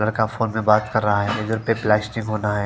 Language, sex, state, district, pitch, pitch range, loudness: Hindi, female, Punjab, Fazilka, 110 Hz, 105-110 Hz, -21 LUFS